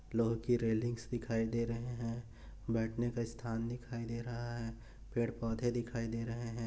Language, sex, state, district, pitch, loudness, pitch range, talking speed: Hindi, male, Maharashtra, Dhule, 115 Hz, -38 LUFS, 115-120 Hz, 180 wpm